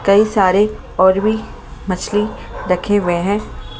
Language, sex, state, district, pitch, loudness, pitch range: Hindi, female, Delhi, New Delhi, 200 Hz, -16 LUFS, 185-210 Hz